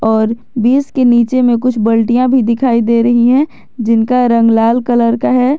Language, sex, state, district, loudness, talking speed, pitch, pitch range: Hindi, female, Jharkhand, Garhwa, -12 LUFS, 195 wpm, 240 Hz, 230-255 Hz